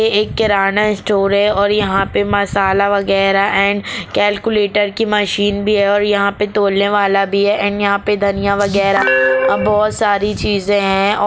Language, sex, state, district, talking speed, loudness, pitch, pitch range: Hindi, female, Bihar, Gopalganj, 170 wpm, -14 LUFS, 200 Hz, 195-205 Hz